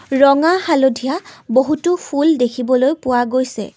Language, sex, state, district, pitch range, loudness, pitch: Assamese, female, Assam, Kamrup Metropolitan, 255-305 Hz, -16 LUFS, 270 Hz